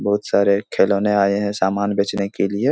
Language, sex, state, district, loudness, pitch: Hindi, male, Bihar, Supaul, -19 LUFS, 100 Hz